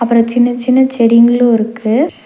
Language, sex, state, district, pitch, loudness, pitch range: Tamil, female, Tamil Nadu, Nilgiris, 235 Hz, -11 LUFS, 230-245 Hz